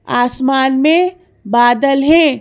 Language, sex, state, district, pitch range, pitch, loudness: Hindi, female, Madhya Pradesh, Bhopal, 245-315 Hz, 270 Hz, -12 LUFS